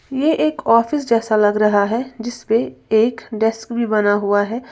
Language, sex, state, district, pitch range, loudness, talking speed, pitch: Hindi, female, Uttar Pradesh, Lalitpur, 215-240 Hz, -17 LUFS, 190 wpm, 230 Hz